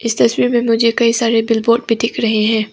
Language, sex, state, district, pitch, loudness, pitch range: Hindi, female, Arunachal Pradesh, Papum Pare, 230 Hz, -14 LUFS, 225-235 Hz